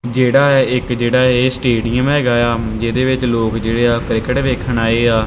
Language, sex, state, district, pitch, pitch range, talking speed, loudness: Punjabi, male, Punjab, Kapurthala, 120 Hz, 115-125 Hz, 195 wpm, -15 LUFS